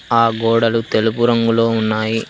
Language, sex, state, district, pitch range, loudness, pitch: Telugu, male, Telangana, Hyderabad, 110-115 Hz, -16 LUFS, 115 Hz